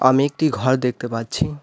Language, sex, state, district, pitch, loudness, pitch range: Bengali, male, West Bengal, Alipurduar, 130 Hz, -20 LUFS, 120-140 Hz